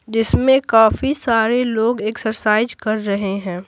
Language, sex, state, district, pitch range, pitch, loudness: Hindi, female, Bihar, Patna, 215-235 Hz, 225 Hz, -17 LUFS